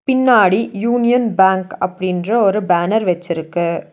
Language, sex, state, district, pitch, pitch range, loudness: Tamil, female, Tamil Nadu, Nilgiris, 190 Hz, 180-230 Hz, -15 LUFS